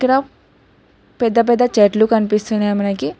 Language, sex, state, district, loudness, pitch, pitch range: Telugu, female, Telangana, Hyderabad, -16 LUFS, 220 Hz, 205-235 Hz